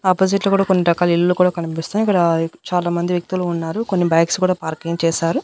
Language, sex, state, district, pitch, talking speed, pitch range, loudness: Telugu, female, Andhra Pradesh, Annamaya, 175 Hz, 185 wpm, 165-185 Hz, -18 LUFS